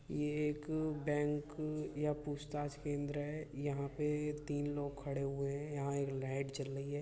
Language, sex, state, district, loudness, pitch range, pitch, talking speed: Hindi, male, Uttar Pradesh, Budaun, -40 LUFS, 140-150 Hz, 145 Hz, 170 wpm